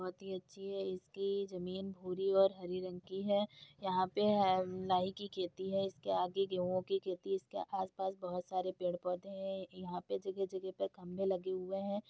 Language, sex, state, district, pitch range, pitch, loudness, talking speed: Hindi, female, Uttar Pradesh, Deoria, 185-195 Hz, 190 Hz, -38 LUFS, 195 wpm